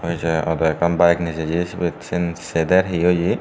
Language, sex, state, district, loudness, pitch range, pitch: Chakma, male, Tripura, Dhalai, -20 LUFS, 80-90 Hz, 85 Hz